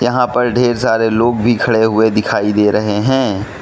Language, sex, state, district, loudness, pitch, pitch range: Hindi, male, Manipur, Imphal West, -14 LUFS, 115 Hz, 105-120 Hz